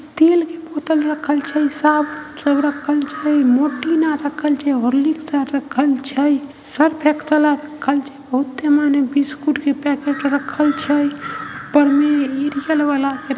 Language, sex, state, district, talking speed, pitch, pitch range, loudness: Maithili, female, Bihar, Samastipur, 150 wpm, 290 Hz, 280-300 Hz, -18 LUFS